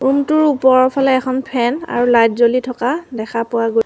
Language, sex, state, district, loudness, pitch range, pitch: Assamese, female, Assam, Sonitpur, -15 LUFS, 235-270 Hz, 255 Hz